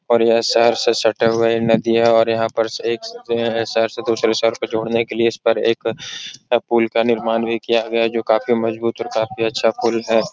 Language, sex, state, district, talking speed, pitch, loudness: Hindi, male, Uttar Pradesh, Etah, 215 wpm, 115 Hz, -18 LUFS